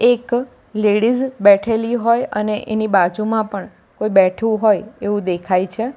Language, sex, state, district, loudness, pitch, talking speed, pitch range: Gujarati, female, Gujarat, Valsad, -17 LUFS, 215 Hz, 140 wpm, 200-230 Hz